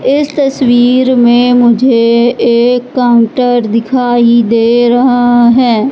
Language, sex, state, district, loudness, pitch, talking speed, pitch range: Hindi, female, Madhya Pradesh, Katni, -8 LUFS, 245 Hz, 100 wpm, 235-250 Hz